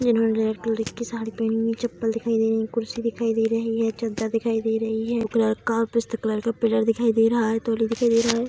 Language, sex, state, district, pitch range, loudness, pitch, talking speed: Hindi, female, Bihar, Darbhanga, 225-230 Hz, -23 LUFS, 225 Hz, 270 wpm